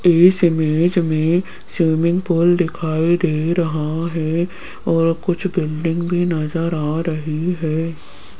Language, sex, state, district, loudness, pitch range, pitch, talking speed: Hindi, female, Rajasthan, Jaipur, -18 LUFS, 160-175 Hz, 165 Hz, 120 wpm